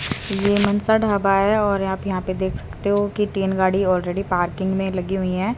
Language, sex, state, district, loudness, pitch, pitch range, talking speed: Hindi, female, Haryana, Rohtak, -21 LUFS, 195 Hz, 185-205 Hz, 215 wpm